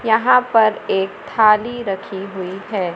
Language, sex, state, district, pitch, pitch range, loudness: Hindi, female, Madhya Pradesh, Umaria, 215 Hz, 195-230 Hz, -17 LUFS